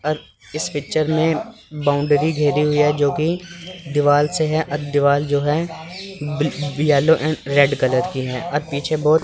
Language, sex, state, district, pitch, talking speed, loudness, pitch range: Hindi, male, Chandigarh, Chandigarh, 150 Hz, 175 wpm, -19 LUFS, 145-160 Hz